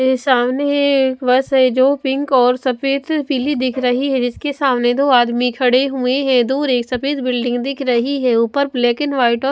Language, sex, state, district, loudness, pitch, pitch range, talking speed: Hindi, female, Maharashtra, Washim, -16 LUFS, 260 Hz, 250-275 Hz, 200 wpm